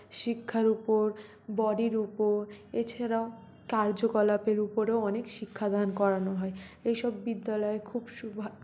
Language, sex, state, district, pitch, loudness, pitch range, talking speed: Bengali, female, West Bengal, North 24 Parganas, 215 Hz, -31 LUFS, 210-230 Hz, 120 wpm